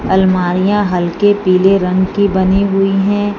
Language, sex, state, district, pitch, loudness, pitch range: Hindi, female, Punjab, Fazilka, 195 Hz, -13 LUFS, 185-200 Hz